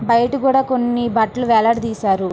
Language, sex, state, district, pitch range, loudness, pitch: Telugu, female, Andhra Pradesh, Srikakulam, 220-250 Hz, -17 LUFS, 235 Hz